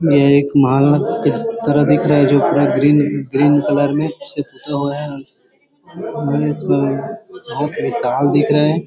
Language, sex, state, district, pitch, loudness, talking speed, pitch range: Hindi, male, Chhattisgarh, Bilaspur, 145 Hz, -15 LUFS, 155 wpm, 140-150 Hz